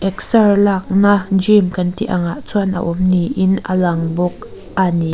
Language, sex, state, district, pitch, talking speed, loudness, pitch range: Mizo, female, Mizoram, Aizawl, 190 Hz, 175 wpm, -15 LUFS, 180-200 Hz